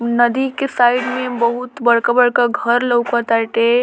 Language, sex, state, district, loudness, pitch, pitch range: Bhojpuri, female, Bihar, Muzaffarpur, -16 LUFS, 240 Hz, 235-250 Hz